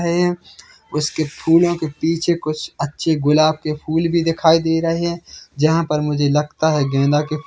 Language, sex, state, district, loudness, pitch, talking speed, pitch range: Hindi, male, Chhattisgarh, Bilaspur, -18 LUFS, 160 Hz, 195 wpm, 150-165 Hz